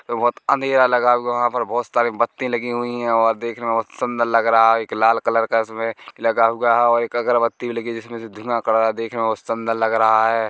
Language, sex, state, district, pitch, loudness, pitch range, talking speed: Hindi, male, Chhattisgarh, Korba, 115 Hz, -19 LUFS, 115-120 Hz, 275 wpm